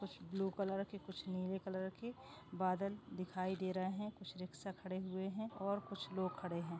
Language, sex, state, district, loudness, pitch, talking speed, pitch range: Hindi, female, Maharashtra, Dhule, -44 LUFS, 190 Hz, 205 wpm, 185-195 Hz